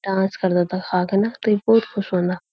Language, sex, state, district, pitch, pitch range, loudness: Garhwali, female, Uttarakhand, Uttarkashi, 190 Hz, 180-210 Hz, -20 LUFS